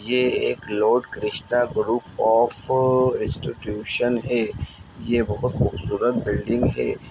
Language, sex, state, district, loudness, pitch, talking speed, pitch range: Hindi, male, Bihar, Muzaffarpur, -22 LUFS, 120 Hz, 120 wpm, 105-125 Hz